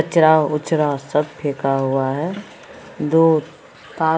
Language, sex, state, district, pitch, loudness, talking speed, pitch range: Maithili, female, Bihar, Samastipur, 150 Hz, -18 LUFS, 130 wpm, 140-160 Hz